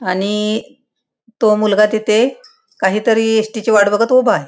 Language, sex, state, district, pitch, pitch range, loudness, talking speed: Marathi, female, Maharashtra, Pune, 220 Hz, 210-230 Hz, -14 LUFS, 145 wpm